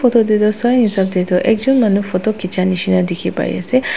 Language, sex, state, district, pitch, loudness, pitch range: Nagamese, female, Nagaland, Dimapur, 210 Hz, -15 LUFS, 185-230 Hz